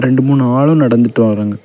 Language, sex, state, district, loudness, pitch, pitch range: Tamil, male, Tamil Nadu, Kanyakumari, -11 LUFS, 125 Hz, 115-135 Hz